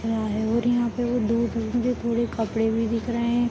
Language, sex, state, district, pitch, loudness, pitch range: Hindi, female, Jharkhand, Sahebganj, 235 Hz, -24 LUFS, 225-240 Hz